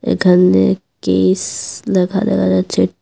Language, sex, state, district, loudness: Bengali, female, Tripura, Unakoti, -15 LUFS